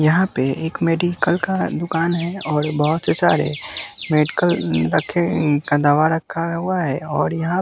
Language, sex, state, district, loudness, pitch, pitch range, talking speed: Hindi, male, Bihar, West Champaran, -19 LUFS, 165 Hz, 150-170 Hz, 155 wpm